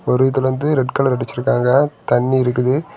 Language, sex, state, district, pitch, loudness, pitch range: Tamil, male, Tamil Nadu, Kanyakumari, 130 Hz, -17 LUFS, 125-135 Hz